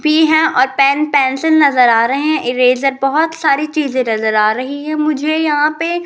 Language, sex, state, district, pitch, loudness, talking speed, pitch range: Hindi, female, Rajasthan, Jaipur, 290 Hz, -13 LUFS, 210 wpm, 255-310 Hz